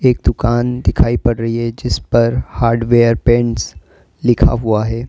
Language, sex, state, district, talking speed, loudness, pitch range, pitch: Hindi, male, Uttar Pradesh, Lalitpur, 155 wpm, -15 LUFS, 110-120 Hz, 115 Hz